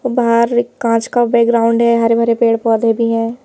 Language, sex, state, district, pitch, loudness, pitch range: Hindi, male, Madhya Pradesh, Bhopal, 230 Hz, -13 LUFS, 230-235 Hz